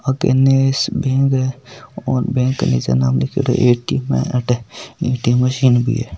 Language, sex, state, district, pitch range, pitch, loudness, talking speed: Hindi, male, Rajasthan, Nagaur, 115-130 Hz, 125 Hz, -17 LUFS, 175 wpm